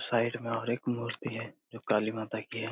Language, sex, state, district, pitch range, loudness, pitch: Hindi, male, Bihar, Jamui, 110-120 Hz, -33 LUFS, 115 Hz